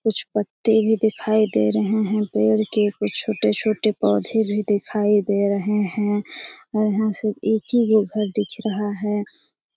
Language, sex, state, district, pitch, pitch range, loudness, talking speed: Hindi, female, Bihar, Jamui, 210 Hz, 205-220 Hz, -21 LUFS, 165 wpm